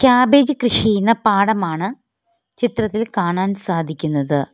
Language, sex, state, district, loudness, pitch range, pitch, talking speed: Malayalam, female, Kerala, Kollam, -17 LUFS, 185-245 Hz, 215 Hz, 90 wpm